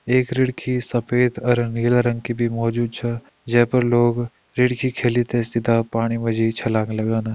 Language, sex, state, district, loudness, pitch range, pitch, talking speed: Hindi, male, Uttarakhand, Tehri Garhwal, -21 LUFS, 115-125 Hz, 120 Hz, 170 wpm